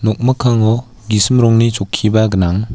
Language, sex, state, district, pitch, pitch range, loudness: Garo, male, Meghalaya, West Garo Hills, 110 Hz, 105-120 Hz, -14 LUFS